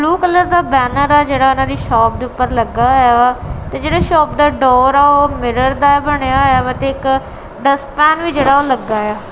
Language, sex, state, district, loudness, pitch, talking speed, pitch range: Punjabi, female, Punjab, Kapurthala, -13 LUFS, 270 Hz, 220 wpm, 255-290 Hz